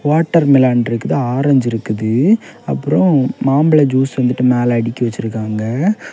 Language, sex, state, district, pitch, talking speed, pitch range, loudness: Tamil, male, Tamil Nadu, Kanyakumari, 130 Hz, 115 wpm, 120-145 Hz, -15 LUFS